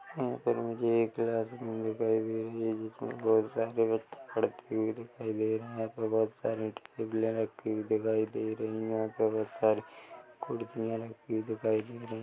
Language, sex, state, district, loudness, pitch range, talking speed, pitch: Hindi, male, Chhattisgarh, Korba, -33 LUFS, 110-115 Hz, 210 wpm, 110 Hz